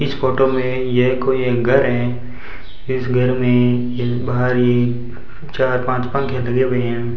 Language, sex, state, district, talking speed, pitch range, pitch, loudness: Hindi, male, Rajasthan, Bikaner, 160 wpm, 120-130 Hz, 125 Hz, -18 LUFS